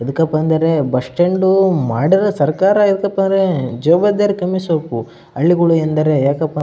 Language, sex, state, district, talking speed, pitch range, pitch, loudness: Kannada, male, Karnataka, Bellary, 90 wpm, 150-190 Hz, 165 Hz, -15 LUFS